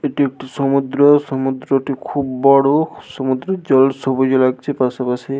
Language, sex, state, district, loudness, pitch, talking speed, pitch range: Bengali, male, West Bengal, Paschim Medinipur, -16 LUFS, 135 Hz, 120 wpm, 130-140 Hz